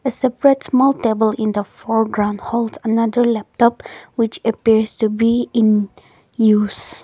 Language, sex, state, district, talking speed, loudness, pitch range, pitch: English, female, Nagaland, Kohima, 135 wpm, -17 LUFS, 215-240 Hz, 225 Hz